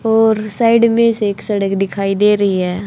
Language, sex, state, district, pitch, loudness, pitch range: Hindi, female, Haryana, Charkhi Dadri, 210 Hz, -14 LUFS, 195-225 Hz